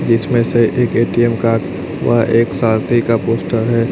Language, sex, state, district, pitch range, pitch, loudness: Hindi, male, Chhattisgarh, Raipur, 115-120 Hz, 115 Hz, -15 LUFS